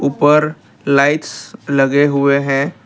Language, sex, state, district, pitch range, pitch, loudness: Hindi, male, Assam, Kamrup Metropolitan, 140-145 Hz, 140 Hz, -14 LUFS